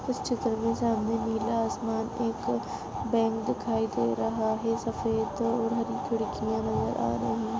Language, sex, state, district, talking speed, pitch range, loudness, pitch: Hindi, female, Goa, North and South Goa, 160 wpm, 210-230 Hz, -29 LUFS, 225 Hz